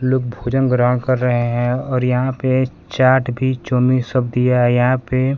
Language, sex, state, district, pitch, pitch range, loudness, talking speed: Hindi, male, Bihar, Kaimur, 125 Hz, 125-130 Hz, -17 LUFS, 190 wpm